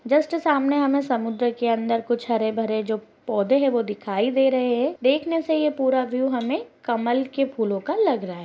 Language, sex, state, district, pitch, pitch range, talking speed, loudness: Hindi, female, Uttar Pradesh, Gorakhpur, 250 Hz, 230-280 Hz, 205 wpm, -23 LUFS